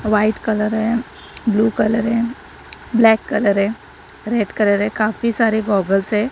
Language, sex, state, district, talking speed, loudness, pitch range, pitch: Hindi, female, Maharashtra, Gondia, 140 wpm, -18 LUFS, 210-225 Hz, 220 Hz